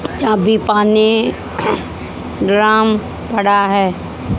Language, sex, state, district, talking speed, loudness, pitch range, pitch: Hindi, female, Haryana, Jhajjar, 70 wpm, -14 LUFS, 205-220 Hz, 215 Hz